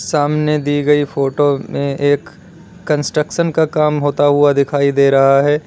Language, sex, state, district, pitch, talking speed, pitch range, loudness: Hindi, male, Uttar Pradesh, Lalitpur, 145 Hz, 160 wpm, 140-150 Hz, -14 LUFS